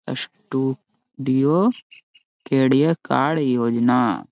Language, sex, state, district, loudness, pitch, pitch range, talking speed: Hindi, male, Bihar, Gaya, -20 LUFS, 135 Hz, 130-155 Hz, 70 wpm